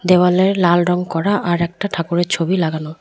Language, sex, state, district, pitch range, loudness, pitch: Bengali, female, West Bengal, Cooch Behar, 170-185 Hz, -17 LUFS, 175 Hz